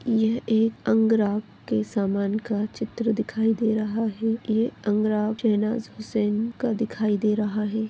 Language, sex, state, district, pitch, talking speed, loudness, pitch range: Hindi, female, Goa, North and South Goa, 220 Hz, 135 wpm, -25 LUFS, 210-225 Hz